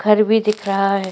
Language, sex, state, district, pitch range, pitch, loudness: Hindi, female, Goa, North and South Goa, 195-210 Hz, 210 Hz, -17 LUFS